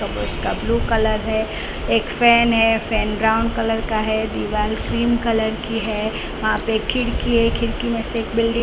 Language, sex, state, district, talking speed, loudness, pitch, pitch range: Hindi, female, Maharashtra, Mumbai Suburban, 165 wpm, -20 LUFS, 225 Hz, 220-230 Hz